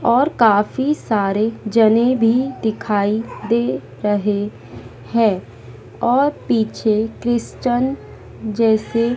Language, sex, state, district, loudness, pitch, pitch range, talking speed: Hindi, female, Madhya Pradesh, Dhar, -18 LUFS, 225 Hz, 205-240 Hz, 85 wpm